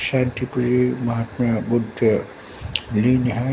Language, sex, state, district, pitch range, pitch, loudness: Hindi, male, Bihar, Katihar, 115-125 Hz, 125 Hz, -21 LUFS